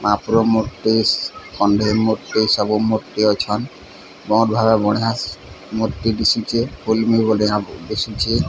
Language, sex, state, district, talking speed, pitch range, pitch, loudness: Odia, male, Odisha, Sambalpur, 85 wpm, 105-110 Hz, 110 Hz, -18 LUFS